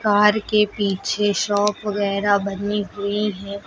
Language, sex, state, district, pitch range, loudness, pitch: Hindi, female, Uttar Pradesh, Lucknow, 200-210 Hz, -20 LUFS, 205 Hz